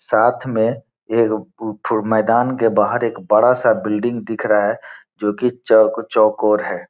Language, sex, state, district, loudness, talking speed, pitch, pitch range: Hindi, male, Bihar, Gopalganj, -17 LUFS, 155 wpm, 110 Hz, 110-115 Hz